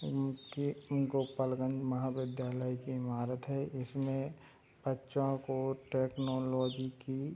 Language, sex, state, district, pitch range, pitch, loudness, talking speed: Hindi, male, Bihar, Gopalganj, 130-135 Hz, 130 Hz, -37 LUFS, 100 wpm